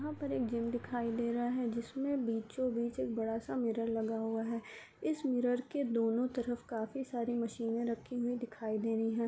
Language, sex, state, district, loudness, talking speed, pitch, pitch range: Hindi, female, Bihar, Gopalganj, -36 LUFS, 215 wpm, 235 Hz, 230-245 Hz